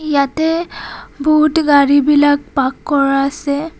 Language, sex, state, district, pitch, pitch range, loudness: Assamese, female, Assam, Kamrup Metropolitan, 290 Hz, 280-310 Hz, -14 LUFS